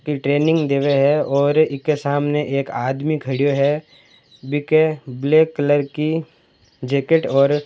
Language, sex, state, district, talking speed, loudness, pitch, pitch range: Marwari, male, Rajasthan, Churu, 135 wpm, -18 LUFS, 145 Hz, 140-155 Hz